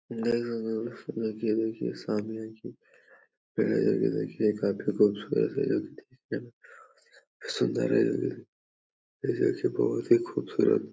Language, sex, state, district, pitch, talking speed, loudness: Hindi, male, Uttar Pradesh, Jalaun, 115 Hz, 40 wpm, -29 LUFS